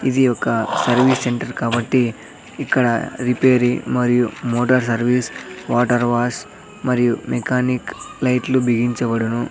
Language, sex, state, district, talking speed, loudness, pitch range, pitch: Telugu, male, Andhra Pradesh, Sri Satya Sai, 100 wpm, -18 LUFS, 120-125 Hz, 120 Hz